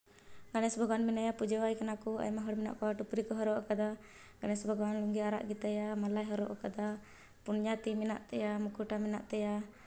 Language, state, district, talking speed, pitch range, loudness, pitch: Santali, Jharkhand, Sahebganj, 200 wpm, 210-220 Hz, -37 LUFS, 215 Hz